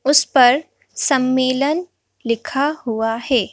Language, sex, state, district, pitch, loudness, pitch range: Hindi, female, Madhya Pradesh, Bhopal, 260 Hz, -18 LUFS, 240-285 Hz